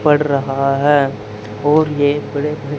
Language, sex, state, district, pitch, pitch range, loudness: Hindi, male, Haryana, Charkhi Dadri, 145 Hz, 135-145 Hz, -16 LUFS